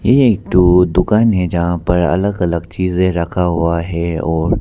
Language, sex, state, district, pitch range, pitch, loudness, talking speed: Hindi, male, Arunachal Pradesh, Papum Pare, 85-95 Hz, 90 Hz, -15 LUFS, 180 wpm